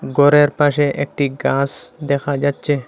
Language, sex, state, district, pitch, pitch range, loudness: Bengali, male, Assam, Hailakandi, 145 Hz, 140-145 Hz, -17 LUFS